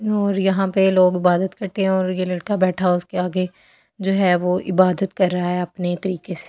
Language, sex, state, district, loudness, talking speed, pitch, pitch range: Hindi, female, Delhi, New Delhi, -20 LUFS, 215 wpm, 185 Hz, 180-195 Hz